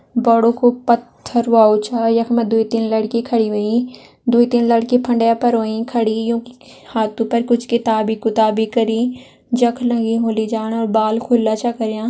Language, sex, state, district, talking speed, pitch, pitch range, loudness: Garhwali, female, Uttarakhand, Tehri Garhwal, 170 wpm, 230 Hz, 220-240 Hz, -17 LUFS